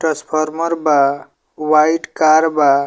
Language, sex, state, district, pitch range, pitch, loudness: Bhojpuri, male, Bihar, Muzaffarpur, 150-160 Hz, 155 Hz, -15 LUFS